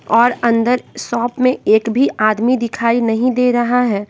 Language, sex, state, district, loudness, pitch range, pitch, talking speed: Hindi, female, Bihar, West Champaran, -15 LUFS, 230-250 Hz, 240 Hz, 175 wpm